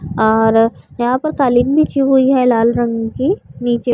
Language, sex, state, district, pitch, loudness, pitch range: Hindi, female, Bihar, Vaishali, 245 Hz, -14 LUFS, 230-265 Hz